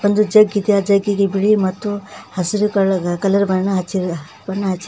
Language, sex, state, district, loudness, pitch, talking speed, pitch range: Kannada, female, Karnataka, Koppal, -17 LUFS, 200 Hz, 185 wpm, 190-205 Hz